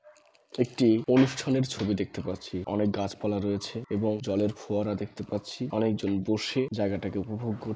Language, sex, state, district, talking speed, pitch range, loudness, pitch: Bengali, male, West Bengal, Malda, 140 wpm, 100-115 Hz, -29 LUFS, 105 Hz